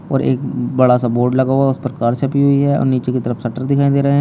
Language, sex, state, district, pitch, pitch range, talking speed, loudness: Hindi, male, Uttar Pradesh, Shamli, 130 Hz, 125-140 Hz, 315 wpm, -16 LUFS